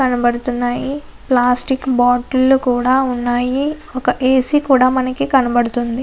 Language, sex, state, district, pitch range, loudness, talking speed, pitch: Telugu, female, Andhra Pradesh, Anantapur, 245-265 Hz, -16 LUFS, 110 wpm, 255 Hz